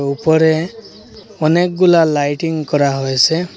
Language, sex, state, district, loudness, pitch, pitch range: Bengali, male, Assam, Hailakandi, -14 LUFS, 160 Hz, 145-175 Hz